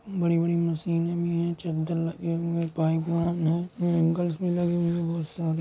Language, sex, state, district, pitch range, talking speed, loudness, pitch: Hindi, male, Uttar Pradesh, Jalaun, 165-170 Hz, 190 wpm, -27 LUFS, 170 Hz